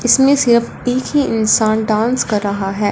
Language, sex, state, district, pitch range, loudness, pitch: Hindi, female, Punjab, Fazilka, 215-250 Hz, -15 LUFS, 225 Hz